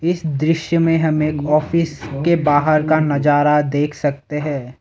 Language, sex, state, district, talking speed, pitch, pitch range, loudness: Hindi, male, Assam, Sonitpur, 160 wpm, 150 Hz, 145-160 Hz, -17 LUFS